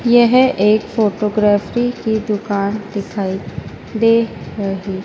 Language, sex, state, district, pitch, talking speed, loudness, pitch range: Hindi, female, Madhya Pradesh, Dhar, 210 Hz, 95 wpm, -16 LUFS, 200-230 Hz